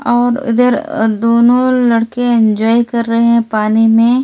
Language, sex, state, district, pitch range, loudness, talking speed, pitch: Hindi, female, Delhi, New Delhi, 225-245 Hz, -12 LUFS, 140 wpm, 235 Hz